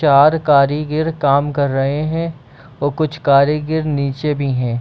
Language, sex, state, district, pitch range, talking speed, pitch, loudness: Hindi, female, Chhattisgarh, Bilaspur, 140-155 Hz, 150 wpm, 145 Hz, -16 LUFS